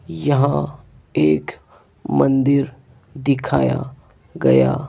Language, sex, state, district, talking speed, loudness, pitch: Hindi, male, Rajasthan, Jaipur, 60 wpm, -18 LUFS, 130 Hz